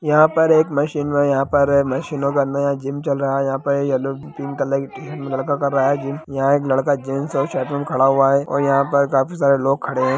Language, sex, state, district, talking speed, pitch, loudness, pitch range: Hindi, male, Bihar, Sitamarhi, 265 wpm, 140 Hz, -19 LUFS, 135-145 Hz